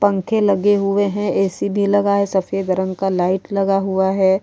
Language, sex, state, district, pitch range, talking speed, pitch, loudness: Hindi, female, Uttar Pradesh, Jalaun, 190-200 Hz, 205 wpm, 195 Hz, -18 LUFS